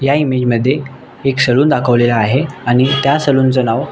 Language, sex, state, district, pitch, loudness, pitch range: Marathi, male, Maharashtra, Nagpur, 130 Hz, -13 LUFS, 125-140 Hz